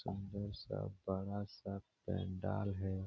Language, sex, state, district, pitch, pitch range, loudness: Hindi, male, Bihar, Supaul, 100 Hz, 95-100 Hz, -43 LUFS